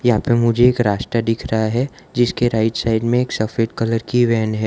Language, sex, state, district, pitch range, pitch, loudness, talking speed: Hindi, male, Gujarat, Valsad, 110-120 Hz, 115 Hz, -18 LUFS, 230 wpm